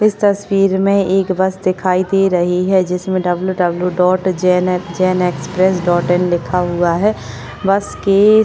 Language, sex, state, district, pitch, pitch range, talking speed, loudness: Hindi, female, Maharashtra, Chandrapur, 185 Hz, 180-195 Hz, 180 wpm, -15 LUFS